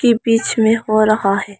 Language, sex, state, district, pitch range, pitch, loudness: Hindi, female, Arunachal Pradesh, Lower Dibang Valley, 215-230 Hz, 220 Hz, -15 LUFS